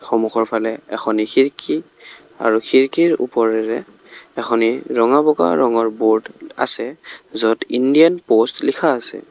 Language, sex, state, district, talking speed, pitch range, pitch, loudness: Assamese, male, Assam, Kamrup Metropolitan, 110 wpm, 110-130 Hz, 115 Hz, -17 LUFS